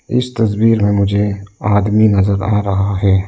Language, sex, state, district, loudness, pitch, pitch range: Hindi, male, Arunachal Pradesh, Lower Dibang Valley, -14 LUFS, 100 Hz, 100-110 Hz